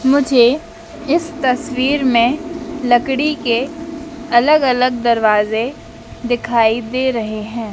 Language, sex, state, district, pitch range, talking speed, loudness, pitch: Hindi, female, Madhya Pradesh, Dhar, 235-300 Hz, 100 wpm, -16 LUFS, 255 Hz